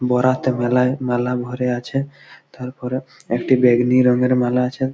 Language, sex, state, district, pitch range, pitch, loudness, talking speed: Bengali, male, West Bengal, Malda, 125-130 Hz, 125 Hz, -19 LUFS, 145 wpm